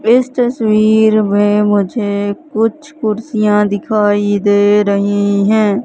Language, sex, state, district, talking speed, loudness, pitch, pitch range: Hindi, female, Madhya Pradesh, Katni, 105 wpm, -13 LUFS, 210 Hz, 205-220 Hz